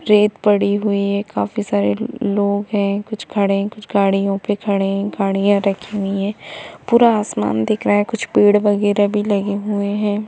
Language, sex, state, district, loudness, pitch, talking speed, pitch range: Hindi, female, Jharkhand, Jamtara, -18 LUFS, 205 Hz, 180 wpm, 200-210 Hz